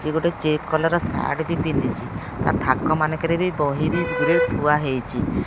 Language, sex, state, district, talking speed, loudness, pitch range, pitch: Odia, female, Odisha, Khordha, 175 wpm, -22 LUFS, 135-165 Hz, 155 Hz